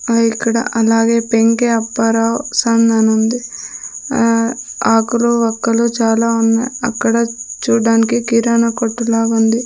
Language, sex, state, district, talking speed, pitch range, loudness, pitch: Telugu, female, Andhra Pradesh, Sri Satya Sai, 120 wpm, 225-235 Hz, -14 LUFS, 230 Hz